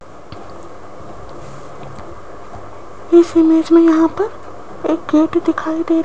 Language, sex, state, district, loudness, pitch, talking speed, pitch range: Hindi, female, Rajasthan, Jaipur, -14 LUFS, 330 Hz, 100 wpm, 320-335 Hz